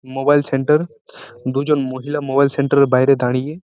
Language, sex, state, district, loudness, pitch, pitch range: Bengali, male, West Bengal, Purulia, -17 LUFS, 140 Hz, 135-150 Hz